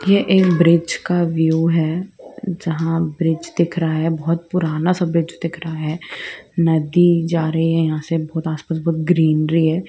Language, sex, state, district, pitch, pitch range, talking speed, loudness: Hindi, female, Andhra Pradesh, Guntur, 165 Hz, 160-170 Hz, 170 wpm, -18 LUFS